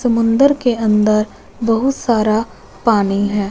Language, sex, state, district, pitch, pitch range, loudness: Hindi, female, Punjab, Fazilka, 225 Hz, 215-240 Hz, -15 LUFS